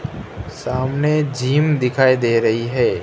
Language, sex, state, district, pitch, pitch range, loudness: Hindi, male, Gujarat, Gandhinagar, 130 Hz, 125-145 Hz, -17 LUFS